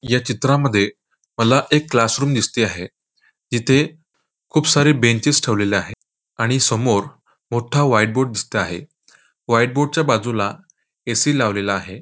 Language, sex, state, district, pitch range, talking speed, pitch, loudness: Marathi, male, Maharashtra, Nagpur, 110-140 Hz, 135 wpm, 120 Hz, -18 LUFS